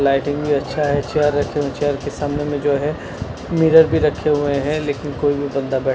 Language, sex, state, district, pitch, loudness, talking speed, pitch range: Hindi, male, Punjab, Kapurthala, 145 Hz, -19 LUFS, 220 wpm, 140-150 Hz